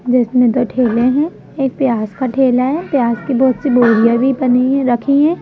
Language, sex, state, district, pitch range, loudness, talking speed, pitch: Hindi, female, Madhya Pradesh, Bhopal, 245-270 Hz, -14 LUFS, 210 wpm, 255 Hz